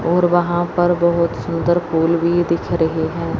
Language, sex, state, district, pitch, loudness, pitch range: Hindi, female, Chandigarh, Chandigarh, 170 Hz, -17 LUFS, 165-175 Hz